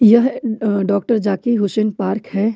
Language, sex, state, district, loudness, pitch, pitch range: Hindi, female, Jharkhand, Ranchi, -17 LUFS, 215 Hz, 200-230 Hz